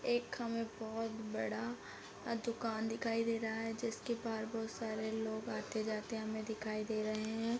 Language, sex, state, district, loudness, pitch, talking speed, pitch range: Hindi, female, Bihar, Sitamarhi, -40 LUFS, 220 Hz, 160 wpm, 220-230 Hz